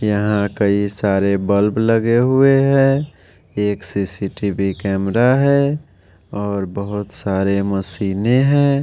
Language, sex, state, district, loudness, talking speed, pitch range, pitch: Hindi, male, Bihar, West Champaran, -17 LUFS, 110 wpm, 100-125 Hz, 105 Hz